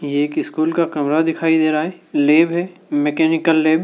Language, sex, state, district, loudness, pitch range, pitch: Hindi, male, Madhya Pradesh, Dhar, -17 LUFS, 150-165 Hz, 160 Hz